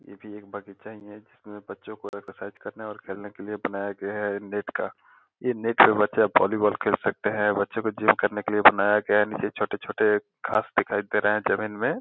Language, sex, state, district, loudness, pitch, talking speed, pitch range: Hindi, male, Bihar, Gopalganj, -24 LUFS, 105 Hz, 235 wpm, 100-105 Hz